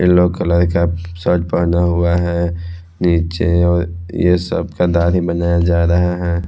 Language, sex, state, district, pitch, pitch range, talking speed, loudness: Hindi, male, Chhattisgarh, Raipur, 85 Hz, 85-90 Hz, 155 wpm, -16 LUFS